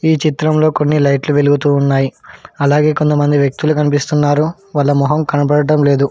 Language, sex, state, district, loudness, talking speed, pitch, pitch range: Telugu, male, Telangana, Hyderabad, -13 LUFS, 140 wpm, 145 Hz, 145-150 Hz